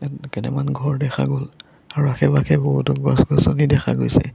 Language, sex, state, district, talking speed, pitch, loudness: Assamese, male, Assam, Sonitpur, 135 wpm, 140 Hz, -19 LUFS